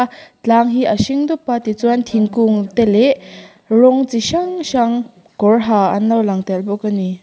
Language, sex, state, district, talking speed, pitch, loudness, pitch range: Mizo, female, Mizoram, Aizawl, 190 wpm, 230 Hz, -15 LUFS, 210-245 Hz